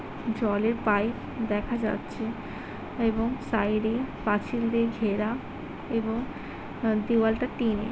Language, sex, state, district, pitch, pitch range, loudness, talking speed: Bengali, male, West Bengal, Paschim Medinipur, 225 Hz, 215-235 Hz, -28 LUFS, 90 wpm